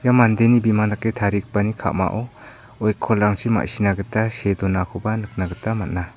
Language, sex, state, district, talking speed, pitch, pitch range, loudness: Garo, male, Meghalaya, South Garo Hills, 135 wpm, 105 Hz, 95-110 Hz, -20 LUFS